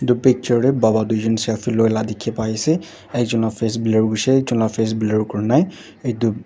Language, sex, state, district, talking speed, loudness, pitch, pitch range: Nagamese, male, Nagaland, Dimapur, 215 wpm, -19 LUFS, 115 Hz, 110-125 Hz